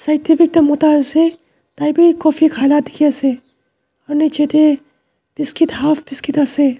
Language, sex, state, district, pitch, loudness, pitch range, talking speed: Nagamese, male, Nagaland, Dimapur, 300 Hz, -14 LUFS, 290-310 Hz, 165 wpm